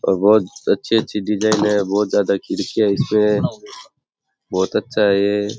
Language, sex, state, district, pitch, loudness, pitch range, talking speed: Rajasthani, male, Rajasthan, Churu, 105 Hz, -18 LUFS, 100-105 Hz, 150 wpm